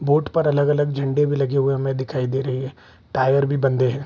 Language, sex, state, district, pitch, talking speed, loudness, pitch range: Hindi, male, Bihar, Vaishali, 135 Hz, 235 wpm, -21 LUFS, 130-145 Hz